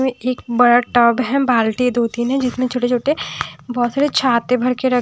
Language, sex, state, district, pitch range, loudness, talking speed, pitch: Hindi, female, Odisha, Sambalpur, 240-255 Hz, -17 LUFS, 205 wpm, 250 Hz